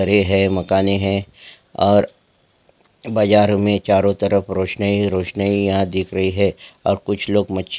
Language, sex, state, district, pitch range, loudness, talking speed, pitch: Marwari, male, Rajasthan, Nagaur, 95-100 Hz, -18 LUFS, 185 wpm, 100 Hz